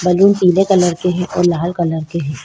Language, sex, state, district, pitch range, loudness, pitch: Hindi, female, Uttar Pradesh, Budaun, 170-180 Hz, -15 LUFS, 180 Hz